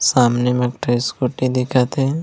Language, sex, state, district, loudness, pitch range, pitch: Chhattisgarhi, male, Chhattisgarh, Raigarh, -18 LUFS, 125-130 Hz, 125 Hz